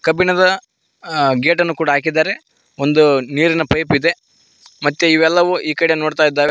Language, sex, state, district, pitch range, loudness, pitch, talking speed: Kannada, male, Karnataka, Koppal, 145-170 Hz, -15 LUFS, 160 Hz, 150 wpm